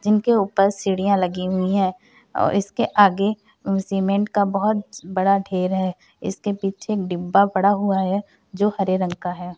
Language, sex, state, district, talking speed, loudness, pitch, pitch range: Hindi, female, Uttar Pradesh, Varanasi, 165 wpm, -21 LUFS, 195 Hz, 190-205 Hz